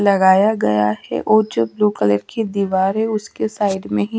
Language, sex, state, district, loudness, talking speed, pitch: Hindi, female, Haryana, Charkhi Dadri, -17 LUFS, 215 wpm, 190 Hz